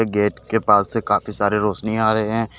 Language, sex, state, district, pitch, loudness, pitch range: Hindi, male, Jharkhand, Deoghar, 105 Hz, -19 LUFS, 105-110 Hz